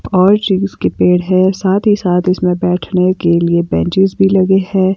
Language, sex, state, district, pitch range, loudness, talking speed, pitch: Hindi, female, Himachal Pradesh, Shimla, 180-190 Hz, -13 LUFS, 180 wpm, 185 Hz